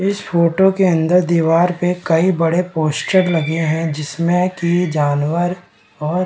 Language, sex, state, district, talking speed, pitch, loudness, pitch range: Hindi, male, Bihar, Kishanganj, 155 wpm, 170 Hz, -16 LUFS, 160-180 Hz